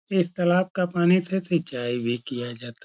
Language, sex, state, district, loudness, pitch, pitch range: Hindi, male, Uttar Pradesh, Etah, -25 LUFS, 175 Hz, 120-180 Hz